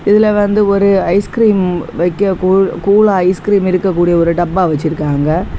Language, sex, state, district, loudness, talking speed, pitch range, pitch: Tamil, female, Tamil Nadu, Kanyakumari, -12 LUFS, 140 wpm, 175-200 Hz, 190 Hz